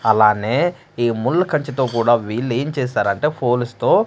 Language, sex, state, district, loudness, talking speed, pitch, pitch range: Telugu, male, Andhra Pradesh, Manyam, -18 LUFS, 175 wpm, 125 Hz, 115-145 Hz